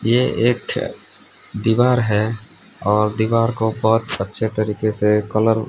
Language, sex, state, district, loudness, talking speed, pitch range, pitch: Hindi, male, Odisha, Sambalpur, -19 LUFS, 135 wpm, 105-115 Hz, 110 Hz